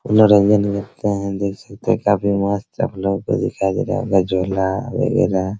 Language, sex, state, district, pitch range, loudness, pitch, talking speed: Hindi, male, Bihar, Araria, 95-105 Hz, -18 LUFS, 100 Hz, 180 wpm